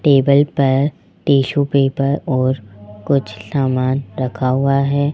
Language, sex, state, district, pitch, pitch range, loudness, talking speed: Hindi, male, Rajasthan, Jaipur, 135 Hz, 130-140 Hz, -17 LUFS, 115 wpm